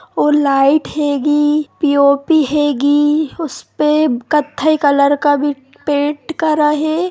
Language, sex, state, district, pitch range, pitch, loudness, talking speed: Hindi, female, Bihar, Sitamarhi, 285-310 Hz, 295 Hz, -14 LUFS, 110 wpm